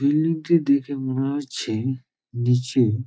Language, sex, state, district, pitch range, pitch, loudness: Bengali, male, West Bengal, Dakshin Dinajpur, 125-145 Hz, 135 Hz, -23 LUFS